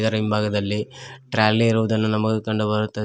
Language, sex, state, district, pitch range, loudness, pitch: Kannada, male, Karnataka, Koppal, 105-110 Hz, -21 LUFS, 110 Hz